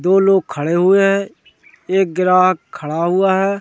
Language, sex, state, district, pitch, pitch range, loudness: Hindi, male, Madhya Pradesh, Katni, 185 Hz, 175-195 Hz, -15 LUFS